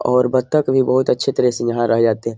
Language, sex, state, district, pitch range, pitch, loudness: Hindi, male, Bihar, Jamui, 120-130 Hz, 125 Hz, -17 LUFS